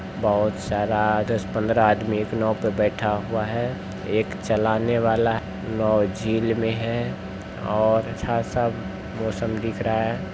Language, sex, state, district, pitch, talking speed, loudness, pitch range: Hindi, male, Bihar, Bhagalpur, 110 Hz, 145 wpm, -23 LUFS, 105-115 Hz